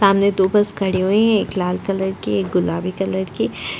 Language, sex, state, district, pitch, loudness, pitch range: Hindi, female, Chhattisgarh, Bastar, 190 Hz, -19 LUFS, 185-200 Hz